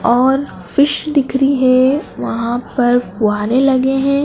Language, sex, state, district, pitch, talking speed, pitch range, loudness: Hindi, female, Madhya Pradesh, Dhar, 260 Hz, 140 wpm, 245-275 Hz, -15 LUFS